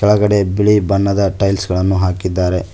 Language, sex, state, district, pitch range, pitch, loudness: Kannada, male, Karnataka, Koppal, 95-105 Hz, 100 Hz, -15 LUFS